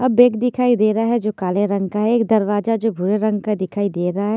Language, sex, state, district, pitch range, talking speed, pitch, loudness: Hindi, female, Himachal Pradesh, Shimla, 205-225 Hz, 290 wpm, 215 Hz, -18 LUFS